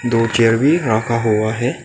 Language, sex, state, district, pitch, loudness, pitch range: Hindi, male, Arunachal Pradesh, Lower Dibang Valley, 115 Hz, -16 LUFS, 110-120 Hz